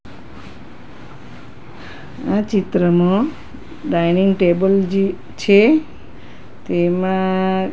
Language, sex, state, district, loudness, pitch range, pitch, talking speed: Gujarati, female, Gujarat, Gandhinagar, -17 LUFS, 180-195 Hz, 190 Hz, 55 wpm